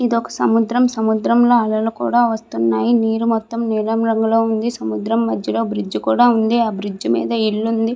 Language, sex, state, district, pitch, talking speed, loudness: Telugu, female, Andhra Pradesh, Visakhapatnam, 225 Hz, 160 wpm, -17 LUFS